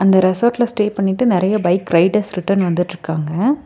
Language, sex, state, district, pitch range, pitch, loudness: Tamil, female, Tamil Nadu, Nilgiris, 175-215 Hz, 195 Hz, -16 LUFS